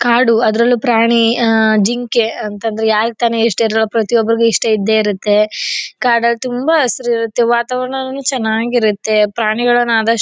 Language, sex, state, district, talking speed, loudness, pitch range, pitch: Kannada, female, Karnataka, Chamarajanagar, 135 wpm, -14 LUFS, 220-240 Hz, 230 Hz